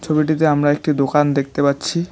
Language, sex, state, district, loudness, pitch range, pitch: Bengali, male, West Bengal, Cooch Behar, -17 LUFS, 140-155 Hz, 150 Hz